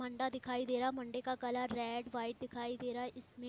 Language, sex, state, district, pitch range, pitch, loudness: Hindi, female, Uttar Pradesh, Varanasi, 245-255 Hz, 250 Hz, -40 LUFS